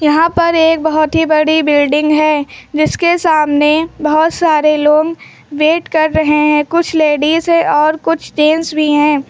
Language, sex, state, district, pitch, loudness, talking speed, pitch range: Hindi, female, Uttar Pradesh, Lucknow, 310 Hz, -12 LUFS, 160 wpm, 300-325 Hz